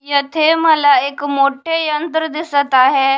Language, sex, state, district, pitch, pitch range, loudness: Marathi, female, Maharashtra, Washim, 290 Hz, 280-320 Hz, -14 LUFS